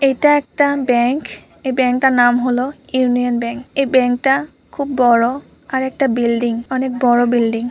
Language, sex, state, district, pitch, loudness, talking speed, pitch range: Bengali, female, West Bengal, Purulia, 255 Hz, -16 LUFS, 165 wpm, 240-270 Hz